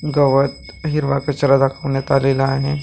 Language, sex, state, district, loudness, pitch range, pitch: Marathi, male, Maharashtra, Gondia, -17 LUFS, 135-145 Hz, 140 Hz